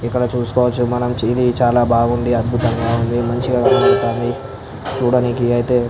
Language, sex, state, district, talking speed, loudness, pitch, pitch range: Telugu, male, Andhra Pradesh, Visakhapatnam, 120 wpm, -16 LUFS, 120 Hz, 120-125 Hz